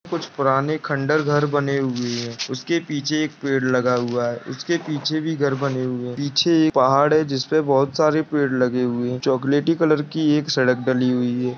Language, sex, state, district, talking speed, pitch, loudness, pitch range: Hindi, male, Uttar Pradesh, Ghazipur, 210 wpm, 140 Hz, -20 LUFS, 125-155 Hz